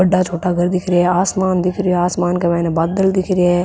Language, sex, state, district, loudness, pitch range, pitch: Rajasthani, female, Rajasthan, Nagaur, -16 LUFS, 175-185 Hz, 180 Hz